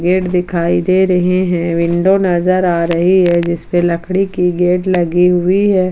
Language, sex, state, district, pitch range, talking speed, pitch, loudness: Hindi, female, Jharkhand, Palamu, 175-185 Hz, 170 wpm, 180 Hz, -13 LUFS